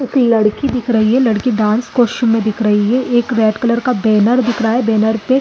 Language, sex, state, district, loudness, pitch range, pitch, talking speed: Hindi, female, Chhattisgarh, Rajnandgaon, -14 LUFS, 220-245 Hz, 235 Hz, 255 wpm